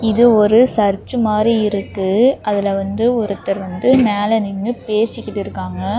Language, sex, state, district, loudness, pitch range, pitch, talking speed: Tamil, female, Tamil Nadu, Namakkal, -16 LUFS, 200-230 Hz, 215 Hz, 130 wpm